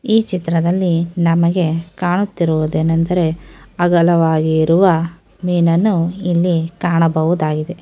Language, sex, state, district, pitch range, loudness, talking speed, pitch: Kannada, female, Karnataka, Chamarajanagar, 165-180 Hz, -16 LUFS, 70 wpm, 170 Hz